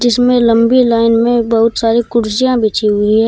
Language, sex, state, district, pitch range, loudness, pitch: Hindi, female, Uttar Pradesh, Shamli, 225-240 Hz, -12 LUFS, 230 Hz